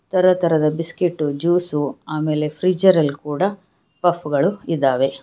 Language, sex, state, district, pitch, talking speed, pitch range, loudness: Kannada, female, Karnataka, Bangalore, 160 Hz, 105 wpm, 145-180 Hz, -19 LUFS